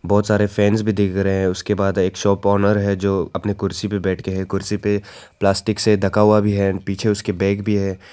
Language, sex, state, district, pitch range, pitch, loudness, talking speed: Hindi, male, Arunachal Pradesh, Lower Dibang Valley, 95-105 Hz, 100 Hz, -19 LUFS, 245 wpm